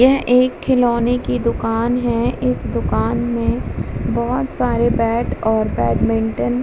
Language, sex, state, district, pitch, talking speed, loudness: Hindi, female, Bihar, Vaishali, 225 Hz, 135 wpm, -18 LUFS